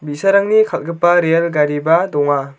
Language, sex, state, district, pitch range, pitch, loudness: Garo, male, Meghalaya, South Garo Hills, 145-175 Hz, 165 Hz, -14 LUFS